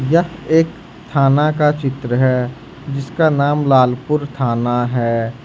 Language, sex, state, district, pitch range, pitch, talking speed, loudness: Hindi, male, Jharkhand, Ranchi, 125-150 Hz, 135 Hz, 120 wpm, -16 LUFS